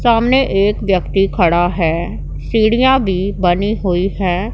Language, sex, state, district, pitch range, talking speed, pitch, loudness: Hindi, female, Punjab, Pathankot, 180-220 Hz, 130 wpm, 195 Hz, -15 LUFS